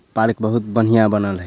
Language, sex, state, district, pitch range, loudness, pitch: Bhojpuri, male, Bihar, Sitamarhi, 105-115 Hz, -17 LUFS, 110 Hz